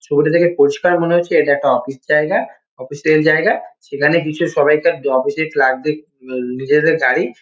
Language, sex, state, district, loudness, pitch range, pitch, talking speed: Bengali, male, West Bengal, Kolkata, -15 LUFS, 140-170 Hz, 150 Hz, 185 wpm